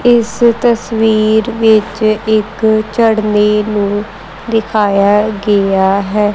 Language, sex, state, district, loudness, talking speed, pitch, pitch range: Punjabi, female, Punjab, Kapurthala, -12 LUFS, 85 wpm, 215 Hz, 210-225 Hz